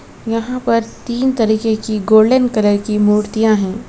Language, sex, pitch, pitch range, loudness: Hindi, female, 220 Hz, 210-230 Hz, -15 LUFS